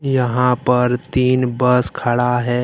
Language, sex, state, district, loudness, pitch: Hindi, male, Jharkhand, Deoghar, -17 LUFS, 125 Hz